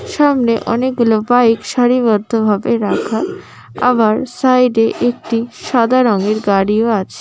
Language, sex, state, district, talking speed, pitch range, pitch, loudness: Bengali, female, West Bengal, Malda, 125 wpm, 220-250 Hz, 235 Hz, -14 LUFS